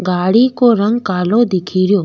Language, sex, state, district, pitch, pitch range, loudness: Rajasthani, female, Rajasthan, Nagaur, 200 Hz, 185-235 Hz, -13 LUFS